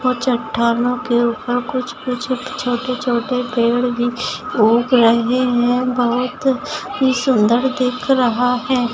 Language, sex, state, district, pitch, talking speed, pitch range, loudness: Hindi, female, Bihar, Kishanganj, 250 Hz, 115 wpm, 240-255 Hz, -17 LUFS